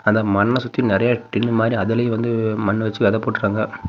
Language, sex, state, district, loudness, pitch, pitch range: Tamil, male, Tamil Nadu, Namakkal, -19 LUFS, 115 Hz, 110-120 Hz